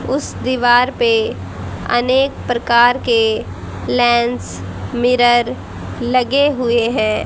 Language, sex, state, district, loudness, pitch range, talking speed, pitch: Hindi, female, Haryana, Jhajjar, -15 LUFS, 230-250 Hz, 90 wpm, 240 Hz